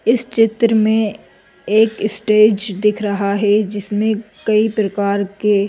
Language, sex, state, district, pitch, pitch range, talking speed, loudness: Hindi, female, Madhya Pradesh, Bhopal, 210 Hz, 205-220 Hz, 125 wpm, -16 LUFS